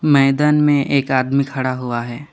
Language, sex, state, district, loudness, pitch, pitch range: Hindi, male, West Bengal, Alipurduar, -17 LUFS, 135 Hz, 130-145 Hz